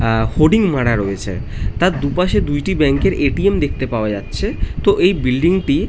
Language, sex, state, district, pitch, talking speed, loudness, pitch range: Bengali, male, West Bengal, North 24 Parganas, 130 Hz, 195 wpm, -17 LUFS, 110-175 Hz